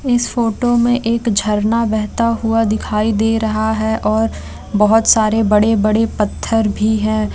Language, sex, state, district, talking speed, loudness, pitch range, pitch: Hindi, female, Bihar, Jamui, 145 wpm, -15 LUFS, 215-230 Hz, 220 Hz